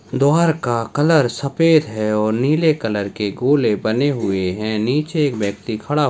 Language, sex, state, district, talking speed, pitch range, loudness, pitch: Hindi, male, Maharashtra, Chandrapur, 175 wpm, 110-150 Hz, -18 LUFS, 125 Hz